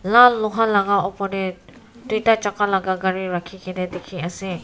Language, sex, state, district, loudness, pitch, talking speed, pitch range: Nagamese, female, Nagaland, Kohima, -20 LUFS, 195 Hz, 170 wpm, 185-215 Hz